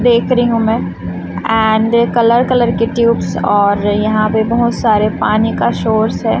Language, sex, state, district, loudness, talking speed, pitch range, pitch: Hindi, female, Chhattisgarh, Raipur, -13 LUFS, 170 wpm, 215-235 Hz, 220 Hz